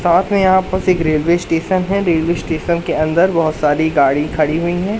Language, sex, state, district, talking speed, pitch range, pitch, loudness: Hindi, male, Madhya Pradesh, Katni, 215 wpm, 155-185 Hz, 170 Hz, -15 LUFS